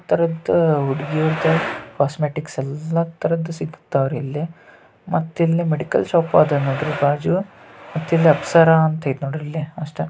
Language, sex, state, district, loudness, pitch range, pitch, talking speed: Kannada, male, Karnataka, Dharwad, -20 LUFS, 145-165 Hz, 155 Hz, 130 wpm